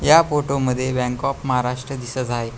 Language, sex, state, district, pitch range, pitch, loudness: Marathi, male, Maharashtra, Pune, 125-140 Hz, 130 Hz, -21 LUFS